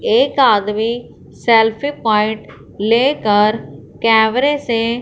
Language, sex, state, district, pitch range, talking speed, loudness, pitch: Hindi, female, Punjab, Fazilka, 215-255 Hz, 85 wpm, -15 LUFS, 225 Hz